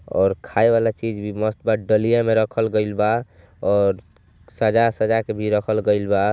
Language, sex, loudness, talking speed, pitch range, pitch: Bhojpuri, male, -20 LUFS, 160 wpm, 105-115 Hz, 110 Hz